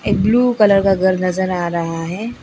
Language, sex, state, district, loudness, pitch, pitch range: Hindi, female, Arunachal Pradesh, Lower Dibang Valley, -16 LUFS, 190 Hz, 180-210 Hz